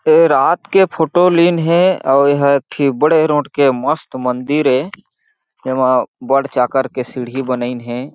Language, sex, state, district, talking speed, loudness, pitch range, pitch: Chhattisgarhi, male, Chhattisgarh, Jashpur, 170 wpm, -14 LUFS, 130-170 Hz, 140 Hz